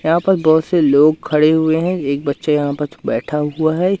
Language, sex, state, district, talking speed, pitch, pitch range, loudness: Hindi, male, Madhya Pradesh, Katni, 225 wpm, 155 Hz, 150-165 Hz, -16 LUFS